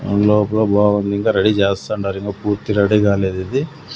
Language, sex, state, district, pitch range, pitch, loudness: Telugu, male, Andhra Pradesh, Sri Satya Sai, 100-105 Hz, 105 Hz, -17 LUFS